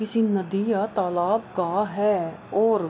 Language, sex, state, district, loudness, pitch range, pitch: Hindi, female, Bihar, Kishanganj, -24 LUFS, 190-220 Hz, 205 Hz